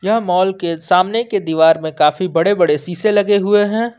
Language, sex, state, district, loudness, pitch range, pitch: Hindi, male, Jharkhand, Ranchi, -15 LUFS, 165-205 Hz, 185 Hz